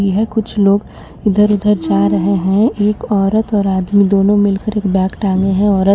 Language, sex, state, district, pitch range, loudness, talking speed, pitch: Hindi, female, Jharkhand, Garhwa, 195-210 Hz, -14 LUFS, 190 wpm, 200 Hz